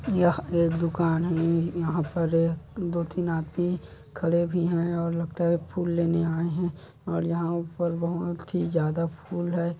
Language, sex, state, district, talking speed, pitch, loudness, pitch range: Hindi, male, Chhattisgarh, Kabirdham, 165 wpm, 170 Hz, -27 LUFS, 165-175 Hz